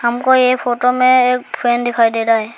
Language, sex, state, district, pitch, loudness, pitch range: Hindi, male, Arunachal Pradesh, Lower Dibang Valley, 240 Hz, -14 LUFS, 230-250 Hz